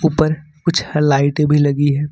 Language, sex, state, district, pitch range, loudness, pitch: Hindi, male, Jharkhand, Ranchi, 145-155 Hz, -16 LUFS, 150 Hz